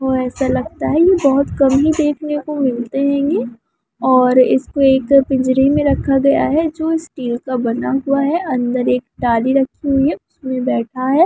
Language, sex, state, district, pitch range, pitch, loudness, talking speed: Hindi, female, West Bengal, Kolkata, 255-295 Hz, 270 Hz, -16 LUFS, 190 wpm